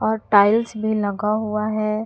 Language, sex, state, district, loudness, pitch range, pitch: Hindi, female, Jharkhand, Palamu, -20 LUFS, 210-220 Hz, 215 Hz